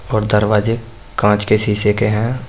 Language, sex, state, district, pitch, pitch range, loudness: Hindi, male, Uttar Pradesh, Saharanpur, 105 Hz, 105-115 Hz, -16 LUFS